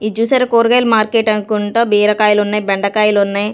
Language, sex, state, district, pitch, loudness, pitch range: Telugu, female, Andhra Pradesh, Sri Satya Sai, 215 Hz, -13 LUFS, 210-230 Hz